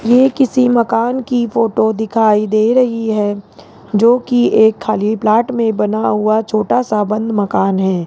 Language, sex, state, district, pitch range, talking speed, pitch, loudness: Hindi, male, Rajasthan, Jaipur, 215-240 Hz, 165 wpm, 220 Hz, -14 LUFS